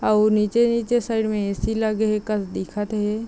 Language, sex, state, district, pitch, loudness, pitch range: Chhattisgarhi, female, Chhattisgarh, Raigarh, 215 Hz, -22 LUFS, 210-225 Hz